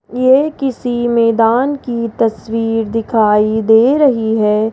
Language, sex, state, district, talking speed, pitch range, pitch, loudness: Hindi, female, Rajasthan, Jaipur, 115 wpm, 220-250 Hz, 230 Hz, -13 LUFS